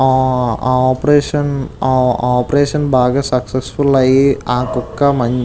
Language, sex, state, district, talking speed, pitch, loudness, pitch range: Telugu, male, Andhra Pradesh, Visakhapatnam, 155 wpm, 130 Hz, -14 LUFS, 125-140 Hz